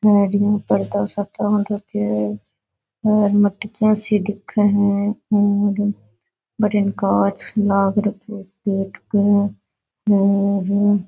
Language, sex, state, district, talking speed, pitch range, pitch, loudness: Rajasthani, female, Rajasthan, Nagaur, 120 wpm, 195-205 Hz, 205 Hz, -19 LUFS